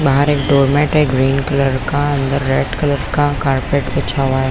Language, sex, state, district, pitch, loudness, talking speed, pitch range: Hindi, female, Chhattisgarh, Korba, 140 Hz, -15 LUFS, 200 wpm, 135-145 Hz